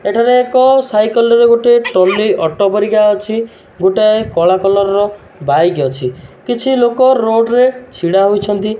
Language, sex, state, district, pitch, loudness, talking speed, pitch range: Odia, male, Odisha, Malkangiri, 215 Hz, -12 LUFS, 130 wpm, 190-235 Hz